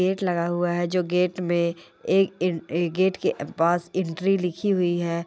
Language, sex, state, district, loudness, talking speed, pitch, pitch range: Hindi, male, Andhra Pradesh, Guntur, -24 LUFS, 170 wpm, 175 Hz, 170-185 Hz